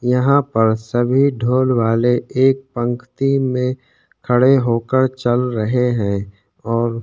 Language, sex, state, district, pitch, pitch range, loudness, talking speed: Hindi, male, Chhattisgarh, Sukma, 125 Hz, 115-130 Hz, -17 LUFS, 110 wpm